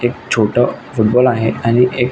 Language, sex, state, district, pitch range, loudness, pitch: Marathi, male, Maharashtra, Nagpur, 110-125 Hz, -14 LUFS, 120 Hz